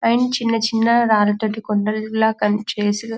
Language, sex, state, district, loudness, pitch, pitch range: Telugu, female, Telangana, Karimnagar, -18 LUFS, 220 Hz, 210-230 Hz